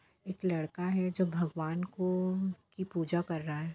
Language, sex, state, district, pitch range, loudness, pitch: Bhojpuri, female, Bihar, Saran, 165-185 Hz, -34 LUFS, 180 Hz